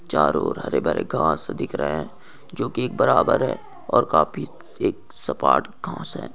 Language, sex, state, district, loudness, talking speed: Hindi, male, Bihar, Saharsa, -22 LUFS, 180 wpm